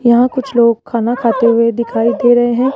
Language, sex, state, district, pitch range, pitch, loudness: Hindi, female, Rajasthan, Jaipur, 230-245 Hz, 235 Hz, -13 LUFS